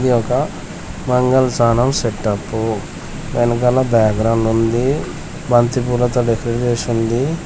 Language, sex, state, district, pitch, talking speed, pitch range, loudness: Telugu, male, Telangana, Komaram Bheem, 120 Hz, 95 wpm, 115-125 Hz, -17 LUFS